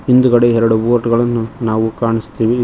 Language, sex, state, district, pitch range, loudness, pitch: Kannada, male, Karnataka, Koppal, 115-120 Hz, -14 LUFS, 115 Hz